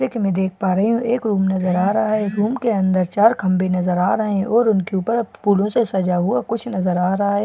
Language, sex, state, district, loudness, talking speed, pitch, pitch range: Hindi, female, Bihar, Katihar, -19 LUFS, 210 wpm, 200 Hz, 185-225 Hz